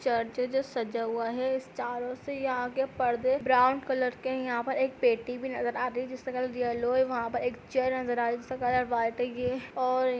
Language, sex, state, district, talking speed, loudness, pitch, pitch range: Hindi, female, Uttar Pradesh, Budaun, 240 wpm, -30 LUFS, 250 Hz, 240-260 Hz